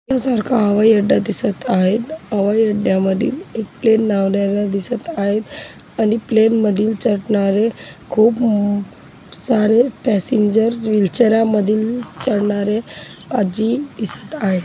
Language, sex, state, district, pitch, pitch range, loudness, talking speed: Marathi, female, Maharashtra, Chandrapur, 215 Hz, 205-230 Hz, -17 LUFS, 110 wpm